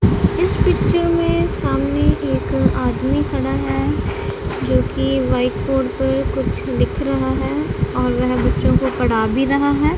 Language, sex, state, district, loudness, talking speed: Hindi, female, Punjab, Kapurthala, -18 LUFS, 145 wpm